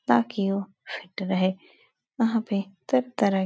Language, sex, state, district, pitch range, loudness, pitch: Hindi, female, Uttar Pradesh, Etah, 190-205 Hz, -27 LUFS, 195 Hz